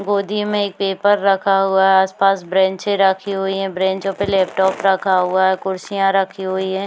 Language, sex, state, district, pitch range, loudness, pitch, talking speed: Hindi, female, Chhattisgarh, Bilaspur, 190-195 Hz, -17 LUFS, 195 Hz, 190 wpm